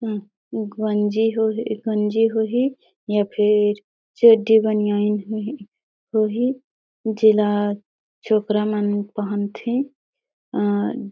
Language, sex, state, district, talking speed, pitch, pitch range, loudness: Surgujia, female, Chhattisgarh, Sarguja, 85 wpm, 215 Hz, 205-225 Hz, -20 LUFS